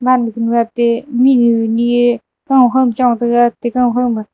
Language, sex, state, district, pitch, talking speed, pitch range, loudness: Wancho, female, Arunachal Pradesh, Longding, 240 Hz, 180 wpm, 235-250 Hz, -13 LUFS